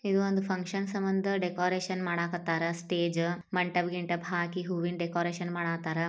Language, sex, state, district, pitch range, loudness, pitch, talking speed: Kannada, female, Karnataka, Bijapur, 170-185 Hz, -31 LUFS, 175 Hz, 130 wpm